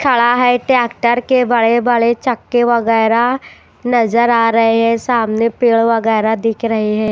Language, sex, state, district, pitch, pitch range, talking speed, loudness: Hindi, female, Maharashtra, Washim, 235 Hz, 225-245 Hz, 150 wpm, -14 LUFS